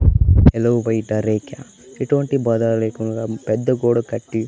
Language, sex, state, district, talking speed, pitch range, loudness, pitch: Telugu, male, Andhra Pradesh, Manyam, 120 wpm, 110-120 Hz, -18 LUFS, 115 Hz